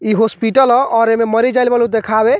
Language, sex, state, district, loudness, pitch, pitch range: Bhojpuri, male, Bihar, Muzaffarpur, -13 LUFS, 230 Hz, 225-245 Hz